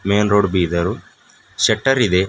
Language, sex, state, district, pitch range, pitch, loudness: Kannada, male, Karnataka, Bidar, 90-110 Hz, 100 Hz, -17 LUFS